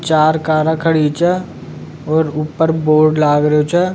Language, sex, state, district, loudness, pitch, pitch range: Rajasthani, male, Rajasthan, Nagaur, -14 LUFS, 155 Hz, 155-160 Hz